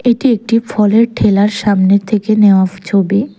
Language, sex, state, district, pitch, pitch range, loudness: Bengali, female, Tripura, West Tripura, 210 Hz, 200-225 Hz, -12 LUFS